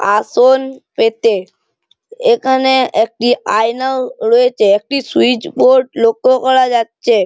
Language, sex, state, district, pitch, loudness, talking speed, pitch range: Bengali, male, West Bengal, Malda, 255 Hz, -13 LUFS, 100 wpm, 230-280 Hz